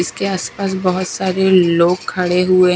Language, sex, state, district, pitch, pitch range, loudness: Hindi, female, Himachal Pradesh, Shimla, 185 Hz, 180-190 Hz, -16 LUFS